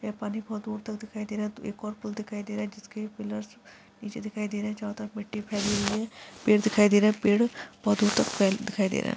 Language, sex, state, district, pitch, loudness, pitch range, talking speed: Hindi, male, Jharkhand, Jamtara, 210 Hz, -28 LUFS, 210-215 Hz, 275 wpm